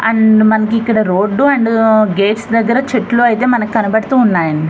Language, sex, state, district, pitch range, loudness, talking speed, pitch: Telugu, female, Andhra Pradesh, Visakhapatnam, 215-235 Hz, -12 LUFS, 140 wpm, 220 Hz